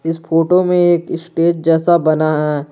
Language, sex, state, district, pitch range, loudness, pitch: Hindi, male, Jharkhand, Garhwa, 160-170 Hz, -14 LUFS, 165 Hz